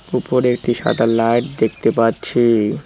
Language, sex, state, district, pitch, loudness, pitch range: Bengali, male, West Bengal, Cooch Behar, 115 Hz, -17 LUFS, 115-120 Hz